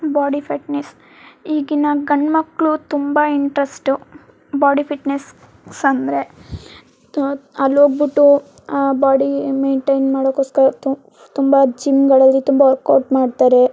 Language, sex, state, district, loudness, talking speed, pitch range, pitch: Kannada, female, Karnataka, Mysore, -16 LUFS, 95 wpm, 270-290 Hz, 280 Hz